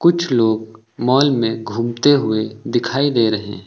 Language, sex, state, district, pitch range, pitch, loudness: Hindi, male, Uttar Pradesh, Lucknow, 110-135 Hz, 115 Hz, -17 LUFS